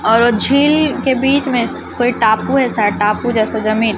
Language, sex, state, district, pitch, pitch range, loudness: Hindi, female, Chhattisgarh, Raipur, 235 Hz, 220-265 Hz, -14 LUFS